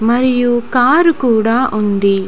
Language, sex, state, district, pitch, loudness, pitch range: Telugu, female, Telangana, Nalgonda, 240 Hz, -13 LUFS, 220-255 Hz